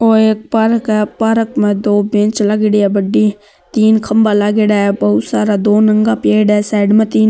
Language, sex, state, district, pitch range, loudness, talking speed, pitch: Marwari, male, Rajasthan, Nagaur, 205-220 Hz, -12 LUFS, 205 wpm, 210 Hz